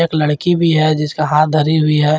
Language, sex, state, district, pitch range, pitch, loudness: Hindi, male, Jharkhand, Garhwa, 150-160 Hz, 155 Hz, -14 LUFS